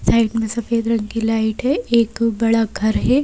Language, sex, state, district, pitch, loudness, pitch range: Hindi, female, Madhya Pradesh, Bhopal, 230 Hz, -18 LUFS, 220-235 Hz